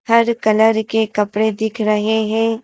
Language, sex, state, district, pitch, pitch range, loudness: Hindi, female, Madhya Pradesh, Dhar, 220 Hz, 215-225 Hz, -16 LUFS